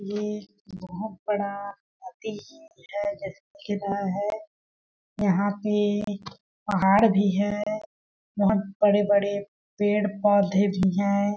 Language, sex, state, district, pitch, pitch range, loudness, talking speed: Hindi, female, Chhattisgarh, Balrampur, 205 Hz, 200-210 Hz, -25 LUFS, 105 wpm